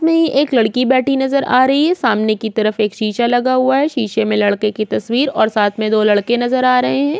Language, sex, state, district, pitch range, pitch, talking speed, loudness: Hindi, female, Chhattisgarh, Korba, 215-270 Hz, 245 Hz, 250 wpm, -15 LUFS